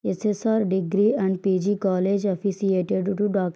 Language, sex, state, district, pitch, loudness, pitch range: Telugu, female, Andhra Pradesh, Srikakulam, 195 Hz, -23 LUFS, 190-205 Hz